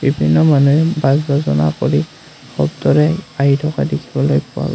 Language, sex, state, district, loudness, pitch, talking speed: Assamese, male, Assam, Kamrup Metropolitan, -15 LUFS, 140 Hz, 115 wpm